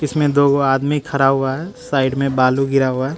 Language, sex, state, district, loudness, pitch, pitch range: Hindi, male, Bihar, Katihar, -17 LUFS, 135 Hz, 135-145 Hz